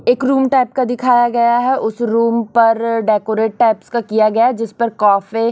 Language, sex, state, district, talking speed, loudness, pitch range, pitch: Hindi, female, Chhattisgarh, Raipur, 195 wpm, -15 LUFS, 220-245 Hz, 230 Hz